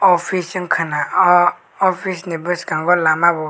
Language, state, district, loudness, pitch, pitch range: Kokborok, Tripura, West Tripura, -17 LUFS, 175 Hz, 160-180 Hz